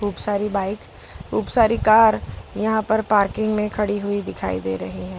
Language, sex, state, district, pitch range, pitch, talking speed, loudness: Hindi, female, Gujarat, Valsad, 195-220 Hz, 210 Hz, 185 wpm, -20 LUFS